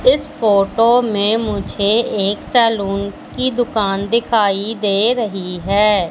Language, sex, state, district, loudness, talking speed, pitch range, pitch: Hindi, female, Madhya Pradesh, Katni, -16 LUFS, 120 wpm, 200-230 Hz, 210 Hz